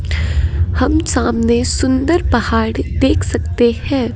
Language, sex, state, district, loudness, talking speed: Hindi, female, Himachal Pradesh, Shimla, -15 LUFS, 100 wpm